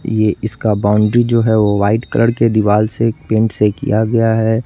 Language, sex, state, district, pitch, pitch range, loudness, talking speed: Hindi, male, Bihar, West Champaran, 110 Hz, 105-115 Hz, -14 LUFS, 205 wpm